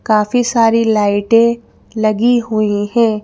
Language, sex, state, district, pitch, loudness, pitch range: Hindi, female, Madhya Pradesh, Bhopal, 225 Hz, -14 LUFS, 215-235 Hz